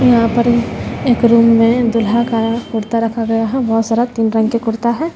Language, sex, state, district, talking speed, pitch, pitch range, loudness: Hindi, female, Bihar, West Champaran, 195 wpm, 230 Hz, 225-235 Hz, -14 LUFS